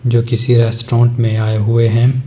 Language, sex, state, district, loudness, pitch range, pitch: Hindi, male, Himachal Pradesh, Shimla, -14 LUFS, 115-120 Hz, 115 Hz